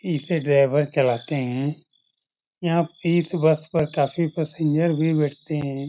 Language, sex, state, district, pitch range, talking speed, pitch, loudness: Hindi, male, Bihar, Saran, 140-165 Hz, 130 wpm, 155 Hz, -22 LUFS